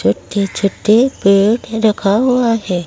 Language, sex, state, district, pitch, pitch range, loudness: Hindi, female, Odisha, Malkangiri, 210 Hz, 195-225 Hz, -14 LUFS